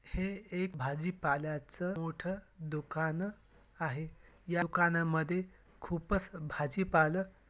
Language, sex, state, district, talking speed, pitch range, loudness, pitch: Marathi, male, Maharashtra, Dhule, 80 wpm, 155-185 Hz, -35 LUFS, 170 Hz